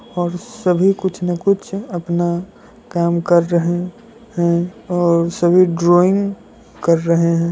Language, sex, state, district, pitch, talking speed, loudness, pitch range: Hindi, male, Bihar, Muzaffarpur, 175 Hz, 130 wpm, -17 LUFS, 170-195 Hz